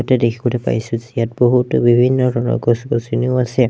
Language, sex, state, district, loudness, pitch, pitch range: Assamese, male, Assam, Sonitpur, -16 LUFS, 120 Hz, 115-125 Hz